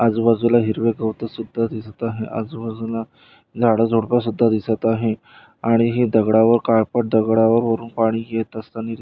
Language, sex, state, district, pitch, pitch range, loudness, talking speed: Marathi, male, Maharashtra, Nagpur, 115 Hz, 110-115 Hz, -19 LUFS, 120 wpm